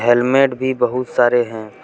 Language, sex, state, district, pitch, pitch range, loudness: Hindi, male, Jharkhand, Deoghar, 120 Hz, 120-130 Hz, -16 LUFS